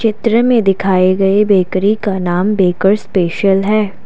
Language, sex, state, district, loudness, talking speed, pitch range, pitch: Hindi, female, Assam, Kamrup Metropolitan, -13 LUFS, 150 wpm, 190-215 Hz, 195 Hz